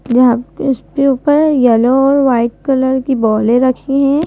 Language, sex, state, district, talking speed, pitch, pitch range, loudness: Hindi, female, Madhya Pradesh, Bhopal, 155 wpm, 260 Hz, 245-275 Hz, -12 LUFS